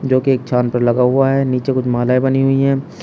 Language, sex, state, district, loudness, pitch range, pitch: Hindi, male, Uttar Pradesh, Shamli, -15 LUFS, 125-135 Hz, 130 Hz